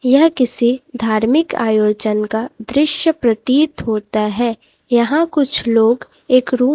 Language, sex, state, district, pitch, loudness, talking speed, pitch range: Hindi, female, Chhattisgarh, Raipur, 240 Hz, -15 LUFS, 135 wpm, 220-275 Hz